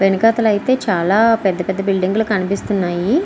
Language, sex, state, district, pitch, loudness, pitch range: Telugu, female, Andhra Pradesh, Srikakulam, 200 Hz, -16 LUFS, 190-225 Hz